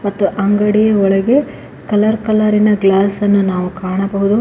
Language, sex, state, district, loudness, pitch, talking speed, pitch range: Kannada, female, Karnataka, Koppal, -14 LUFS, 200 Hz, 120 wpm, 195-210 Hz